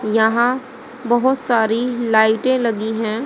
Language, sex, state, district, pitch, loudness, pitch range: Hindi, female, Haryana, Rohtak, 235 Hz, -17 LUFS, 220-255 Hz